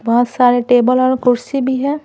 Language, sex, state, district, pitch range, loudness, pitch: Hindi, female, Bihar, Patna, 245-260 Hz, -14 LUFS, 250 Hz